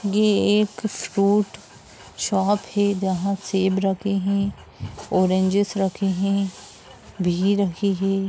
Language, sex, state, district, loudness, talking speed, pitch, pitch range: Hindi, female, Bihar, Sitamarhi, -22 LUFS, 110 wpm, 195 Hz, 190-205 Hz